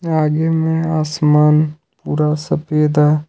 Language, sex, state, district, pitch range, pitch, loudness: Hindi, male, Jharkhand, Ranchi, 150-160 Hz, 155 Hz, -16 LUFS